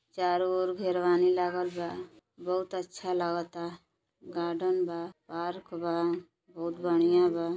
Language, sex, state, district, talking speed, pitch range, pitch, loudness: Bhojpuri, female, Uttar Pradesh, Deoria, 120 wpm, 170-180 Hz, 175 Hz, -30 LUFS